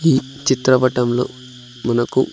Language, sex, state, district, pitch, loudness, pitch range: Telugu, male, Andhra Pradesh, Sri Satya Sai, 130 Hz, -18 LUFS, 125-130 Hz